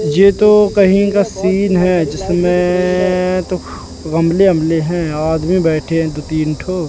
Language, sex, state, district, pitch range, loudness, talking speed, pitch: Hindi, male, Madhya Pradesh, Katni, 165-190 Hz, -14 LUFS, 150 wpm, 180 Hz